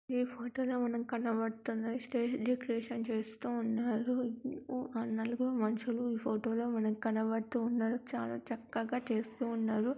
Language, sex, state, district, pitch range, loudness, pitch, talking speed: Telugu, female, Andhra Pradesh, Krishna, 225-245 Hz, -36 LUFS, 235 Hz, 120 wpm